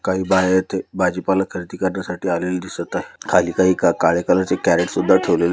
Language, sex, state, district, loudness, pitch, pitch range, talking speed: Marathi, male, Maharashtra, Dhule, -19 LUFS, 90 Hz, 90-95 Hz, 185 wpm